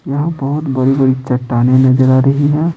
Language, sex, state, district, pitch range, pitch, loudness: Hindi, male, Bihar, Patna, 130-145 Hz, 135 Hz, -13 LUFS